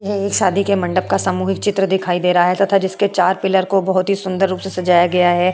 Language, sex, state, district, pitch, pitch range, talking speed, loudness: Hindi, female, Uttar Pradesh, Hamirpur, 190 Hz, 180-195 Hz, 270 wpm, -16 LUFS